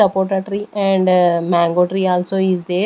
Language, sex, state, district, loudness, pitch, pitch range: English, female, Maharashtra, Gondia, -16 LUFS, 190 Hz, 180-195 Hz